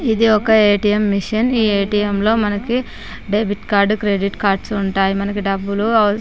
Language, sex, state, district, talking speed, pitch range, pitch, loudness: Telugu, female, Andhra Pradesh, Chittoor, 175 wpm, 200-220 Hz, 205 Hz, -17 LUFS